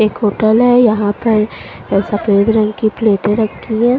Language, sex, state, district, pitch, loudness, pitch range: Hindi, female, Punjab, Fazilka, 215 Hz, -13 LUFS, 210-225 Hz